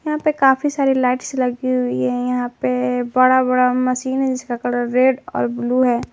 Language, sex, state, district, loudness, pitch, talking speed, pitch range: Hindi, female, Jharkhand, Palamu, -18 LUFS, 255 Hz, 195 wpm, 245-260 Hz